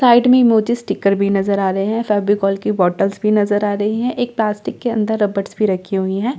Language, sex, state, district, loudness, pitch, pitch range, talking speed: Hindi, female, Delhi, New Delhi, -17 LUFS, 210 Hz, 195-225 Hz, 245 wpm